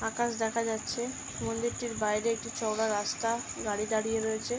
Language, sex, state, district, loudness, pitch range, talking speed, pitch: Bengali, female, West Bengal, Dakshin Dinajpur, -31 LUFS, 220-235 Hz, 155 wpm, 225 Hz